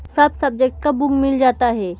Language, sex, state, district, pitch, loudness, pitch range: Hindi, female, Bihar, Samastipur, 270 Hz, -17 LUFS, 250-285 Hz